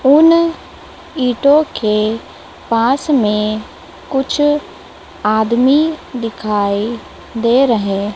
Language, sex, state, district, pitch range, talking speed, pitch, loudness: Hindi, female, Madhya Pradesh, Dhar, 215-295 Hz, 75 wpm, 245 Hz, -15 LUFS